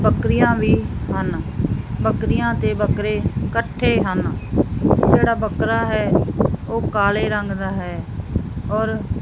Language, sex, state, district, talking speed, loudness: Punjabi, female, Punjab, Fazilka, 110 wpm, -20 LUFS